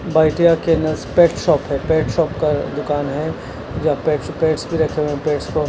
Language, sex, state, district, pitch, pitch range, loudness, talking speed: Hindi, male, Punjab, Kapurthala, 155 Hz, 145-160 Hz, -18 LUFS, 200 wpm